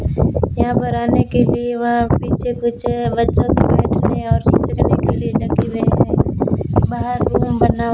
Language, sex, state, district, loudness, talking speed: Hindi, female, Rajasthan, Bikaner, -17 LUFS, 135 wpm